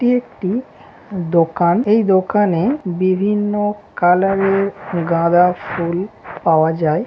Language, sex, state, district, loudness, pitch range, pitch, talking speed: Bengali, male, West Bengal, Dakshin Dinajpur, -17 LUFS, 170-205 Hz, 185 Hz, 110 wpm